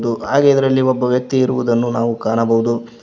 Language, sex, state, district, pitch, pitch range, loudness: Kannada, male, Karnataka, Koppal, 120 Hz, 115-130 Hz, -16 LUFS